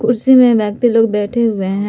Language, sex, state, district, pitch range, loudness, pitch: Hindi, female, Jharkhand, Palamu, 205-240 Hz, -13 LUFS, 225 Hz